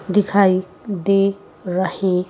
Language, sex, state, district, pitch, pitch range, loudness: Hindi, female, Madhya Pradesh, Bhopal, 195 Hz, 185-200 Hz, -19 LUFS